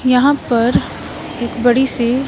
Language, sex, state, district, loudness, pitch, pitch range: Hindi, female, Himachal Pradesh, Shimla, -15 LUFS, 245 Hz, 240-265 Hz